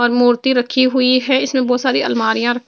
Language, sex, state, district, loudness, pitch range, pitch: Hindi, female, Maharashtra, Gondia, -15 LUFS, 240-260 Hz, 250 Hz